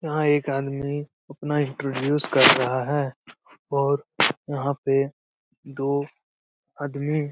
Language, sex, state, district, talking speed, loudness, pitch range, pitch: Hindi, male, Bihar, Lakhisarai, 115 wpm, -23 LUFS, 135-145 Hz, 140 Hz